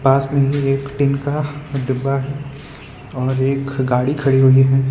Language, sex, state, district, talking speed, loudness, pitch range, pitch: Hindi, male, Gujarat, Valsad, 170 wpm, -17 LUFS, 135-140 Hz, 135 Hz